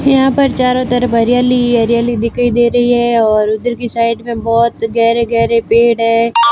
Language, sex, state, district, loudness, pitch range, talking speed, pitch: Hindi, female, Rajasthan, Barmer, -12 LUFS, 230-245 Hz, 195 wpm, 235 Hz